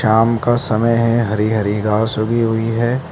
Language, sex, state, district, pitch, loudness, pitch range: Hindi, male, Mizoram, Aizawl, 115 Hz, -16 LUFS, 110-115 Hz